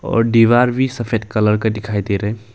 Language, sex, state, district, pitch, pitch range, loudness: Hindi, male, Arunachal Pradesh, Longding, 115 Hz, 105-120 Hz, -16 LUFS